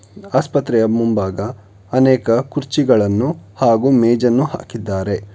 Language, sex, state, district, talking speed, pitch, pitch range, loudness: Kannada, male, Karnataka, Bangalore, 80 wpm, 120 Hz, 105-135 Hz, -16 LUFS